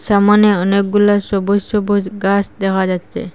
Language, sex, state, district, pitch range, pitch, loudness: Bengali, female, Assam, Hailakandi, 195-205 Hz, 200 Hz, -15 LUFS